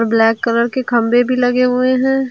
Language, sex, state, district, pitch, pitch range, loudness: Hindi, female, Uttar Pradesh, Lucknow, 245 Hz, 230-255 Hz, -14 LUFS